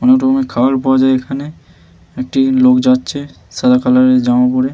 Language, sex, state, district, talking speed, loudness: Bengali, male, West Bengal, Malda, 175 wpm, -12 LUFS